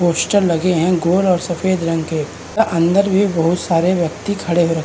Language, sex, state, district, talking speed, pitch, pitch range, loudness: Hindi, male, Uttarakhand, Uttarkashi, 195 wpm, 175 Hz, 165-190 Hz, -16 LUFS